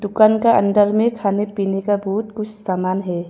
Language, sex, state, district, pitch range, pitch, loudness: Hindi, female, Arunachal Pradesh, Papum Pare, 195-215 Hz, 205 Hz, -18 LUFS